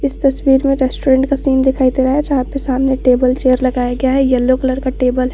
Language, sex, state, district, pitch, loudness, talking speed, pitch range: Hindi, female, Jharkhand, Garhwa, 260 Hz, -14 LUFS, 260 wpm, 255-270 Hz